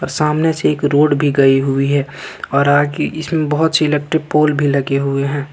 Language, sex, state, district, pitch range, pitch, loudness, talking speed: Hindi, male, Jharkhand, Ranchi, 140-155 Hz, 145 Hz, -15 LUFS, 205 wpm